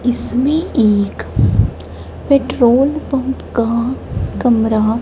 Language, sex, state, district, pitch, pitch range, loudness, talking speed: Hindi, male, Punjab, Kapurthala, 235 Hz, 180-260 Hz, -15 LUFS, 70 wpm